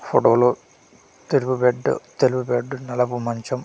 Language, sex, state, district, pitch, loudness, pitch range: Telugu, male, Andhra Pradesh, Manyam, 125 Hz, -21 LUFS, 120-130 Hz